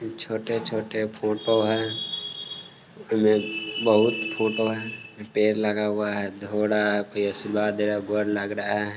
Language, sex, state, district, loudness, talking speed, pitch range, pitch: Hindi, male, Bihar, Sitamarhi, -25 LUFS, 160 wpm, 105-110 Hz, 105 Hz